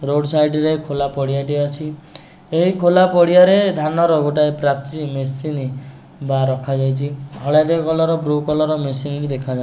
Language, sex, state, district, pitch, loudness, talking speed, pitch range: Odia, male, Odisha, Nuapada, 150 Hz, -17 LUFS, 135 wpm, 140-155 Hz